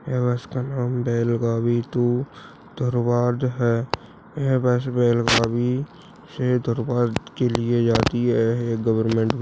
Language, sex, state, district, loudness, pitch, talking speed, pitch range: Hindi, male, Chhattisgarh, Bastar, -22 LUFS, 120 Hz, 125 wpm, 115-125 Hz